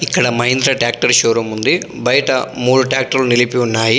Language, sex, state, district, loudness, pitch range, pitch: Telugu, male, Telangana, Adilabad, -14 LUFS, 120-130 Hz, 125 Hz